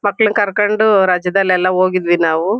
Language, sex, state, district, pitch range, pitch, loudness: Kannada, female, Karnataka, Shimoga, 180-205 Hz, 190 Hz, -14 LUFS